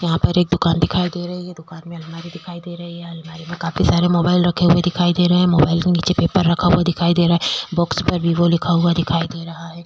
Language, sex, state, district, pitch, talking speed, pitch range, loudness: Hindi, female, Uttar Pradesh, Jyotiba Phule Nagar, 170 Hz, 275 wpm, 165-175 Hz, -17 LUFS